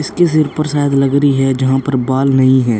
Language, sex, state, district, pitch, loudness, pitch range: Hindi, male, Chhattisgarh, Korba, 135 Hz, -13 LUFS, 130-145 Hz